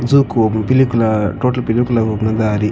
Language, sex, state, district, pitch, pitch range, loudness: Tulu, male, Karnataka, Dakshina Kannada, 115 Hz, 110-125 Hz, -15 LUFS